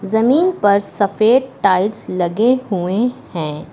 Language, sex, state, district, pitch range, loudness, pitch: Hindi, female, Uttar Pradesh, Lucknow, 185-245 Hz, -16 LUFS, 205 Hz